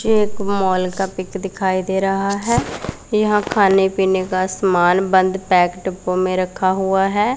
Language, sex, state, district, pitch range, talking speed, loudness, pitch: Hindi, female, Punjab, Pathankot, 185-200 Hz, 170 wpm, -18 LUFS, 190 Hz